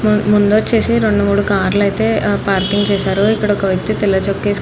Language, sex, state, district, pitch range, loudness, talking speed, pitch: Telugu, female, Andhra Pradesh, Anantapur, 200-210 Hz, -14 LUFS, 195 wpm, 205 Hz